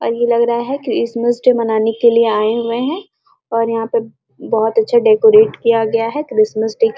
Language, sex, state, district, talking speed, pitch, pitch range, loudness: Hindi, female, Bihar, Araria, 205 wpm, 230 Hz, 225-255 Hz, -15 LUFS